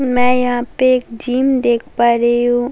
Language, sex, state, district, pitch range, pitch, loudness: Hindi, female, Delhi, New Delhi, 240-255 Hz, 245 Hz, -15 LUFS